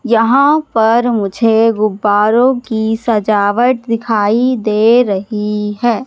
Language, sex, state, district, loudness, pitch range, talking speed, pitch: Hindi, female, Madhya Pradesh, Katni, -13 LUFS, 210-240 Hz, 100 wpm, 225 Hz